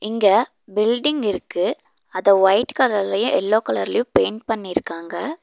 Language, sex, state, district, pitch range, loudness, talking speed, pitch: Tamil, female, Tamil Nadu, Nilgiris, 195-230 Hz, -19 LUFS, 110 wpm, 210 Hz